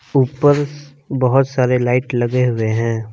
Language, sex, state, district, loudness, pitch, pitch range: Hindi, male, Jharkhand, Palamu, -17 LUFS, 125 Hz, 120-140 Hz